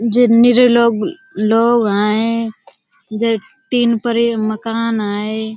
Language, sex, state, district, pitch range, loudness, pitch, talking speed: Hindi, female, Uttar Pradesh, Budaun, 220-235 Hz, -15 LUFS, 230 Hz, 120 wpm